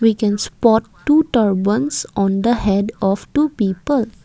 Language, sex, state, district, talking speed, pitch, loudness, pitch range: English, female, Assam, Kamrup Metropolitan, 155 wpm, 220 Hz, -17 LUFS, 200-245 Hz